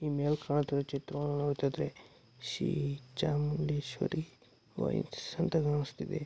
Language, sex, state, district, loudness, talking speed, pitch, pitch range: Kannada, male, Karnataka, Mysore, -34 LUFS, 95 wpm, 145 Hz, 145-155 Hz